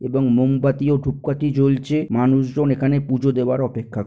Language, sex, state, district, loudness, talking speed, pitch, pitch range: Bengali, male, West Bengal, North 24 Parganas, -19 LUFS, 160 wpm, 135 Hz, 130-140 Hz